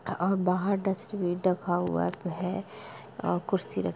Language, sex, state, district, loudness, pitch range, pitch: Hindi, female, Bihar, Gopalganj, -30 LUFS, 175-195 Hz, 180 Hz